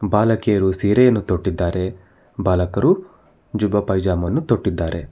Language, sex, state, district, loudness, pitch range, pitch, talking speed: Kannada, male, Karnataka, Bangalore, -19 LUFS, 90-110 Hz, 100 Hz, 95 wpm